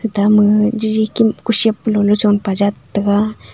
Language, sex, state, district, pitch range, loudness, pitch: Wancho, female, Arunachal Pradesh, Longding, 205-220 Hz, -14 LUFS, 210 Hz